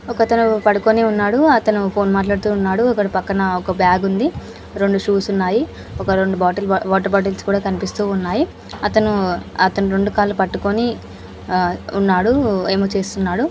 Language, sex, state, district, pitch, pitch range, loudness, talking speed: Telugu, female, Andhra Pradesh, Anantapur, 200 Hz, 190-210 Hz, -17 LUFS, 140 wpm